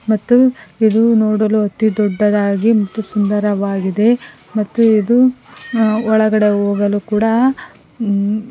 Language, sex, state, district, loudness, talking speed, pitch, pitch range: Kannada, female, Karnataka, Koppal, -15 LUFS, 105 wpm, 215 Hz, 205-225 Hz